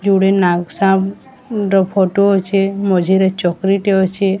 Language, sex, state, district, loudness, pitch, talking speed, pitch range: Odia, female, Odisha, Sambalpur, -15 LUFS, 195 Hz, 135 wpm, 190-200 Hz